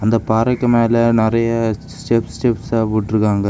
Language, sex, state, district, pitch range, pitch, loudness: Tamil, male, Tamil Nadu, Kanyakumari, 110-115 Hz, 115 Hz, -16 LUFS